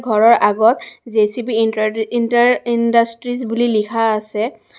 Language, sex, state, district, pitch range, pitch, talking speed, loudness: Assamese, female, Assam, Kamrup Metropolitan, 220-240 Hz, 230 Hz, 115 wpm, -16 LUFS